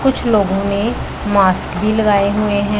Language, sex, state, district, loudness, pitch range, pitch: Hindi, female, Punjab, Pathankot, -15 LUFS, 200-215 Hz, 205 Hz